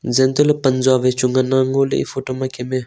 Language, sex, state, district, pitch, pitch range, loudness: Wancho, male, Arunachal Pradesh, Longding, 130 Hz, 130-135 Hz, -17 LUFS